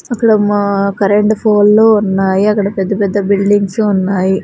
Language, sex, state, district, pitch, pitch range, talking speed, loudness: Telugu, female, Andhra Pradesh, Sri Satya Sai, 205 Hz, 195-210 Hz, 135 wpm, -12 LUFS